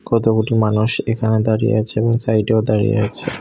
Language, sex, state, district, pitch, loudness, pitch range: Bengali, male, Tripura, Unakoti, 110 Hz, -17 LUFS, 110-115 Hz